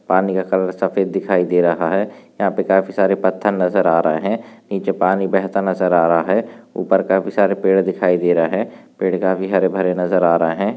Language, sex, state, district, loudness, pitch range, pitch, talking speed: Hindi, male, Maharashtra, Nagpur, -17 LUFS, 90-95 Hz, 95 Hz, 205 wpm